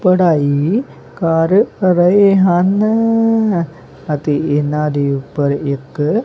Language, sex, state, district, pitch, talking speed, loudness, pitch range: Punjabi, male, Punjab, Kapurthala, 170 Hz, 85 wpm, -14 LUFS, 145-200 Hz